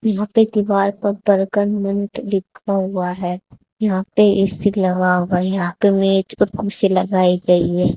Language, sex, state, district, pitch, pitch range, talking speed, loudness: Hindi, female, Haryana, Charkhi Dadri, 195 Hz, 185-205 Hz, 175 wpm, -18 LUFS